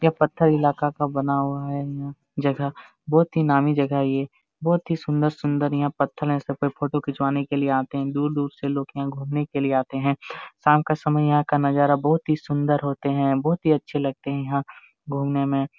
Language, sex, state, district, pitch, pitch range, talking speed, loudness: Hindi, male, Jharkhand, Jamtara, 140 Hz, 140-150 Hz, 230 wpm, -23 LUFS